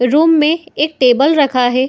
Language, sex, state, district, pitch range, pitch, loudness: Hindi, female, Uttar Pradesh, Muzaffarnagar, 255-315 Hz, 290 Hz, -12 LUFS